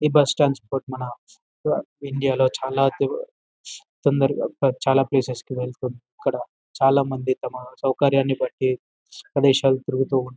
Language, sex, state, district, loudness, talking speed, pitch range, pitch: Telugu, male, Telangana, Karimnagar, -23 LUFS, 120 wpm, 130-140 Hz, 135 Hz